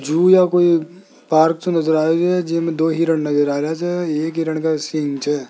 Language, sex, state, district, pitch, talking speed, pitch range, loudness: Hindi, male, Rajasthan, Jaipur, 160 Hz, 220 wpm, 155-175 Hz, -17 LUFS